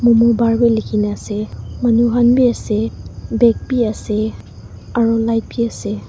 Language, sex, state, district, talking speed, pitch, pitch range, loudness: Nagamese, female, Nagaland, Dimapur, 155 wpm, 230 Hz, 215-235 Hz, -16 LUFS